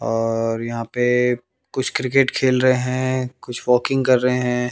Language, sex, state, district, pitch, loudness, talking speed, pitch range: Hindi, male, Haryana, Jhajjar, 125 Hz, -20 LUFS, 165 wpm, 120-130 Hz